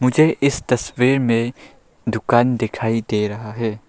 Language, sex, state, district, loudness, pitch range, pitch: Hindi, male, Arunachal Pradesh, Lower Dibang Valley, -19 LUFS, 110-125 Hz, 120 Hz